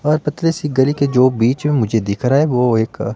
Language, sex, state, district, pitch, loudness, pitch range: Hindi, male, Himachal Pradesh, Shimla, 130 Hz, -16 LUFS, 115-150 Hz